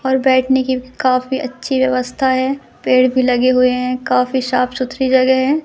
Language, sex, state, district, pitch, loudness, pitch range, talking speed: Hindi, female, Madhya Pradesh, Katni, 260 Hz, -16 LUFS, 255-265 Hz, 180 wpm